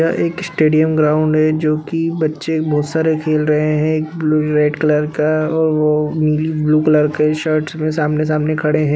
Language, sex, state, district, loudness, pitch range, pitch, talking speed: Hindi, male, Bihar, Bhagalpur, -16 LUFS, 150-155 Hz, 155 Hz, 200 wpm